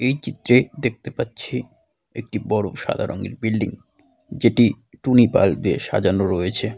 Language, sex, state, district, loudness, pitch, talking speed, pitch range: Bengali, male, West Bengal, Dakshin Dinajpur, -21 LUFS, 115 Hz, 140 wpm, 100-125 Hz